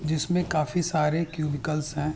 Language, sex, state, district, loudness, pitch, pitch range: Hindi, male, Uttar Pradesh, Hamirpur, -27 LUFS, 155 Hz, 150-165 Hz